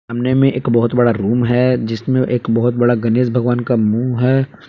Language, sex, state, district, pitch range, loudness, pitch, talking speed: Hindi, male, Jharkhand, Palamu, 120-125 Hz, -15 LUFS, 120 Hz, 205 wpm